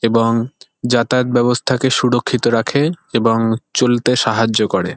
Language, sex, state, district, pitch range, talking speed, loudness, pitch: Bengali, male, West Bengal, Kolkata, 115-125 Hz, 110 wpm, -16 LUFS, 120 Hz